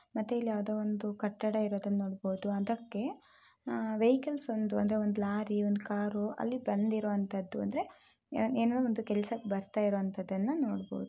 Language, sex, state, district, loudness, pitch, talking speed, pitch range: Kannada, female, Karnataka, Shimoga, -34 LUFS, 210 Hz, 135 wpm, 205-230 Hz